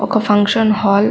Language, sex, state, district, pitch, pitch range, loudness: Telugu, female, Andhra Pradesh, Chittoor, 210 Hz, 200-220 Hz, -14 LUFS